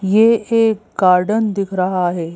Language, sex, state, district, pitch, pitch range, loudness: Hindi, female, Madhya Pradesh, Bhopal, 195 Hz, 185-220 Hz, -16 LUFS